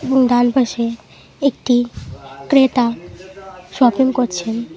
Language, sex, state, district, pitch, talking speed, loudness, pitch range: Bengali, female, West Bengal, Cooch Behar, 240 Hz, 90 wpm, -16 LUFS, 190-260 Hz